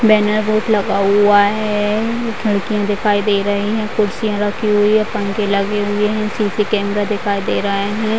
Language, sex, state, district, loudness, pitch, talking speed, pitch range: Hindi, female, Bihar, Vaishali, -16 LUFS, 210 Hz, 175 wpm, 205-215 Hz